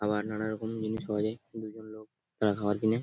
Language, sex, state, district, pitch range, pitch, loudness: Bengali, male, West Bengal, Purulia, 105-110 Hz, 110 Hz, -33 LUFS